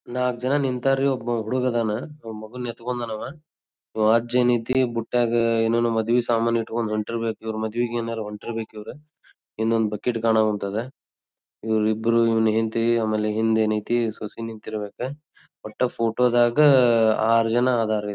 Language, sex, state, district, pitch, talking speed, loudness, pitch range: Kannada, male, Karnataka, Dharwad, 115 Hz, 145 wpm, -23 LUFS, 110-120 Hz